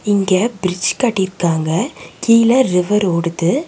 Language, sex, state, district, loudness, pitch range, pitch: Tamil, female, Tamil Nadu, Nilgiris, -16 LUFS, 175-230 Hz, 185 Hz